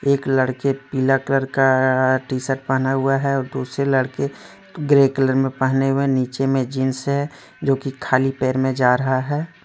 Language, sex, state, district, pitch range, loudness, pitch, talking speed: Hindi, male, Jharkhand, Deoghar, 130-135 Hz, -19 LUFS, 135 Hz, 195 wpm